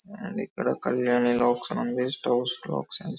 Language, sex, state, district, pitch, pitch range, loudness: Telugu, male, Telangana, Karimnagar, 125 Hz, 120-200 Hz, -27 LUFS